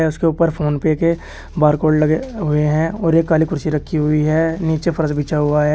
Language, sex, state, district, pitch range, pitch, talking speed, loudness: Hindi, male, Uttar Pradesh, Shamli, 150-165 Hz, 155 Hz, 220 wpm, -17 LUFS